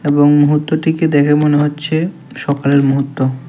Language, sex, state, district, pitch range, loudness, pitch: Bengali, male, Tripura, West Tripura, 145-155 Hz, -14 LUFS, 150 Hz